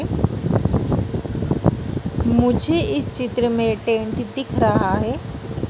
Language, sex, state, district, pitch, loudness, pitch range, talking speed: Hindi, female, Madhya Pradesh, Dhar, 235 Hz, -21 LUFS, 225-245 Hz, 85 wpm